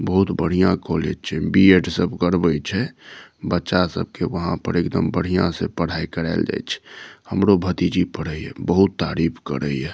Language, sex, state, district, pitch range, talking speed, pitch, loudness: Maithili, male, Bihar, Saharsa, 80-95 Hz, 170 wpm, 90 Hz, -21 LUFS